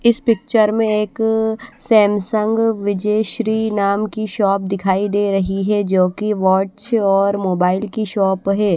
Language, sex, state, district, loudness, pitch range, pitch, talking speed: Hindi, female, Bihar, West Champaran, -17 LUFS, 195-220 Hz, 205 Hz, 150 wpm